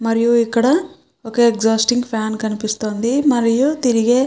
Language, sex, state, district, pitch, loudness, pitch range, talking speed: Telugu, female, Andhra Pradesh, Chittoor, 235 Hz, -17 LUFS, 225-250 Hz, 125 wpm